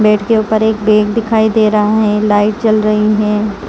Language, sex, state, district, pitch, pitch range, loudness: Hindi, female, Chhattisgarh, Rajnandgaon, 215 Hz, 210-220 Hz, -12 LUFS